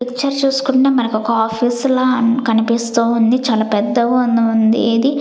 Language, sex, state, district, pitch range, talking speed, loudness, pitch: Telugu, female, Andhra Pradesh, Sri Satya Sai, 230-255 Hz, 160 wpm, -15 LUFS, 235 Hz